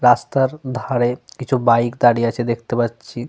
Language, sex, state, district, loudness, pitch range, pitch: Bengali, male, Jharkhand, Sahebganj, -18 LUFS, 120-130 Hz, 120 Hz